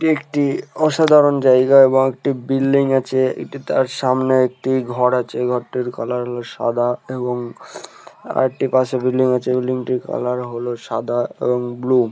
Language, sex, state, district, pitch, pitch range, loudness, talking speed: Bengali, male, West Bengal, Purulia, 130 Hz, 125-130 Hz, -18 LUFS, 150 wpm